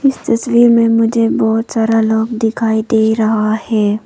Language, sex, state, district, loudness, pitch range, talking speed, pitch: Hindi, female, Arunachal Pradesh, Papum Pare, -13 LUFS, 220-230 Hz, 160 wpm, 225 Hz